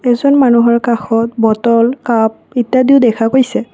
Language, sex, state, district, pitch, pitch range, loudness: Assamese, female, Assam, Kamrup Metropolitan, 235 Hz, 230-255 Hz, -12 LUFS